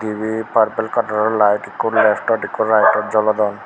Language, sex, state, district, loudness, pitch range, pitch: Chakma, male, Tripura, Unakoti, -17 LUFS, 105-110 Hz, 110 Hz